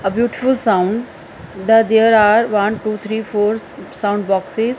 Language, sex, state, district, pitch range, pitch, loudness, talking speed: English, female, Punjab, Fazilka, 205-225 Hz, 215 Hz, -16 LUFS, 165 wpm